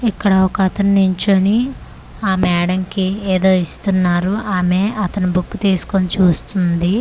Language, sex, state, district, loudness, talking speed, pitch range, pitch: Telugu, female, Andhra Pradesh, Manyam, -16 LUFS, 105 wpm, 180-200 Hz, 190 Hz